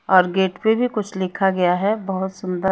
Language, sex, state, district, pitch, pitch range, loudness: Hindi, female, Chhattisgarh, Raipur, 190 Hz, 185-205 Hz, -20 LUFS